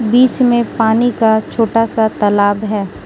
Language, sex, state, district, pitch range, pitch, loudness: Hindi, female, Manipur, Imphal West, 215-235 Hz, 225 Hz, -13 LUFS